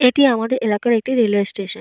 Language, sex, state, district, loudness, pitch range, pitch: Bengali, female, Jharkhand, Jamtara, -18 LUFS, 210-250 Hz, 230 Hz